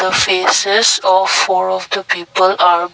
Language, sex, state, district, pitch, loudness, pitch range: English, male, Assam, Kamrup Metropolitan, 185 Hz, -13 LUFS, 185-190 Hz